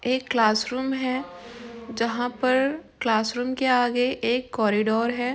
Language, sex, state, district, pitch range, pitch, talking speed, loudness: Hindi, female, Uttar Pradesh, Jyotiba Phule Nagar, 230-255 Hz, 245 Hz, 125 wpm, -24 LUFS